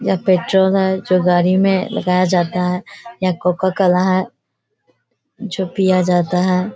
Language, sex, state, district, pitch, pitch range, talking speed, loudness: Hindi, female, Bihar, Kishanganj, 185 Hz, 180-190 Hz, 140 wpm, -16 LUFS